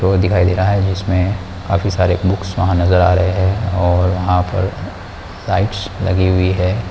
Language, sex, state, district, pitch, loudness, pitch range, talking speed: Hindi, male, Bihar, Kishanganj, 95 Hz, -16 LUFS, 90-95 Hz, 185 wpm